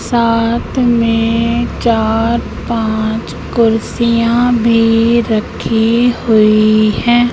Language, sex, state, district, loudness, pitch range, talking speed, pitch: Hindi, female, Madhya Pradesh, Katni, -13 LUFS, 225-235 Hz, 75 wpm, 230 Hz